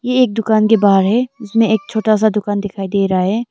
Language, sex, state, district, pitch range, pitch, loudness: Hindi, female, Arunachal Pradesh, Longding, 200-225 Hz, 220 Hz, -15 LUFS